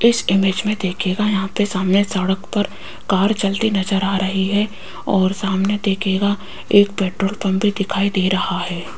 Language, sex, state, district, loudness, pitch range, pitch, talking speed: Hindi, female, Rajasthan, Jaipur, -19 LUFS, 190-205 Hz, 195 Hz, 175 wpm